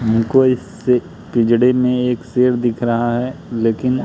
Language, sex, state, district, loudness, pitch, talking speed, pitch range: Hindi, male, Madhya Pradesh, Katni, -17 LUFS, 120 Hz, 150 wpm, 115-125 Hz